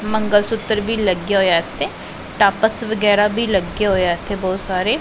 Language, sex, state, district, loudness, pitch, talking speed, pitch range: Punjabi, female, Punjab, Pathankot, -18 LUFS, 205 Hz, 180 wpm, 190-220 Hz